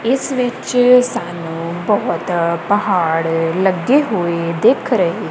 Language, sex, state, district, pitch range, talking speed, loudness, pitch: Punjabi, female, Punjab, Kapurthala, 170-245 Hz, 100 wpm, -16 LUFS, 185 Hz